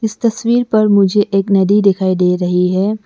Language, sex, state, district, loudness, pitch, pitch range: Hindi, female, Arunachal Pradesh, Lower Dibang Valley, -13 LUFS, 200 Hz, 190-215 Hz